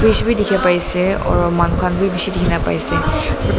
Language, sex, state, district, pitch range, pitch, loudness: Nagamese, female, Nagaland, Dimapur, 175-195 Hz, 180 Hz, -16 LUFS